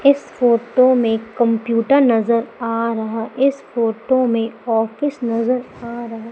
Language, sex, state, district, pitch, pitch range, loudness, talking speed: Hindi, female, Madhya Pradesh, Umaria, 235 Hz, 230-255 Hz, -18 LUFS, 135 wpm